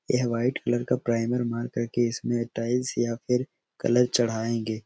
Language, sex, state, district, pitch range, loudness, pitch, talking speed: Hindi, male, Bihar, Araria, 115-125 Hz, -26 LUFS, 120 Hz, 175 wpm